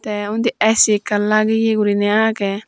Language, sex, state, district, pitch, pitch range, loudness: Chakma, female, Tripura, Dhalai, 215 Hz, 205-220 Hz, -16 LUFS